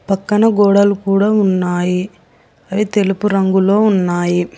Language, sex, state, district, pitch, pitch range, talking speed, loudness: Telugu, female, Telangana, Hyderabad, 195 Hz, 180-205 Hz, 105 wpm, -14 LUFS